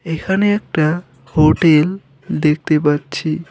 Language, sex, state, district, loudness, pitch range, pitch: Bengali, male, West Bengal, Alipurduar, -16 LUFS, 150-175 Hz, 155 Hz